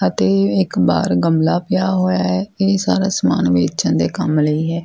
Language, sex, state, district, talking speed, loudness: Punjabi, female, Punjab, Fazilka, 175 wpm, -16 LUFS